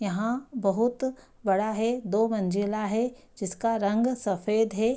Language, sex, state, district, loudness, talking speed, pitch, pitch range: Hindi, female, Bihar, Darbhanga, -27 LUFS, 135 wpm, 220 Hz, 200-240 Hz